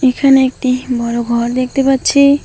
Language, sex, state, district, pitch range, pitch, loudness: Bengali, female, West Bengal, Alipurduar, 245-270 Hz, 255 Hz, -13 LUFS